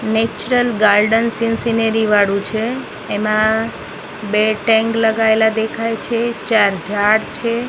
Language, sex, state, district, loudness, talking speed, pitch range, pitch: Gujarati, female, Maharashtra, Mumbai Suburban, -16 LUFS, 115 wpm, 215-230 Hz, 220 Hz